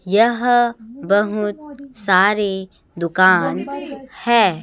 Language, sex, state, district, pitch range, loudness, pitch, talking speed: Hindi, female, Chhattisgarh, Raipur, 190-245 Hz, -17 LUFS, 210 Hz, 65 wpm